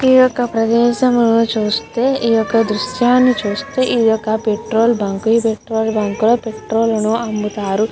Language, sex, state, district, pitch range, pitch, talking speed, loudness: Telugu, female, Andhra Pradesh, Guntur, 215-240 Hz, 225 Hz, 115 wpm, -15 LUFS